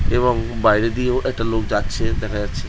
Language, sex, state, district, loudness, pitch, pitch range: Bengali, male, West Bengal, Jhargram, -20 LUFS, 115 Hz, 105-120 Hz